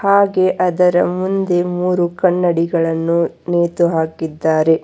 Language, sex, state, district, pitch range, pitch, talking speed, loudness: Kannada, female, Karnataka, Bangalore, 165-180 Hz, 175 Hz, 85 wpm, -16 LUFS